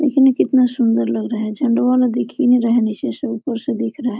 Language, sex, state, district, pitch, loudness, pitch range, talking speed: Hindi, female, Jharkhand, Sahebganj, 245 Hz, -17 LUFS, 230-255 Hz, 300 wpm